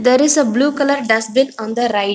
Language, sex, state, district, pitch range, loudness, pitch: English, female, Telangana, Hyderabad, 220-280 Hz, -15 LUFS, 250 Hz